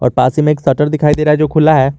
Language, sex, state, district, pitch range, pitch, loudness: Hindi, male, Jharkhand, Garhwa, 135-155 Hz, 150 Hz, -12 LUFS